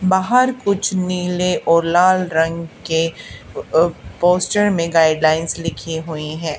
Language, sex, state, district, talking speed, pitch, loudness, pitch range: Hindi, female, Haryana, Charkhi Dadri, 120 wpm, 170 Hz, -17 LUFS, 160-185 Hz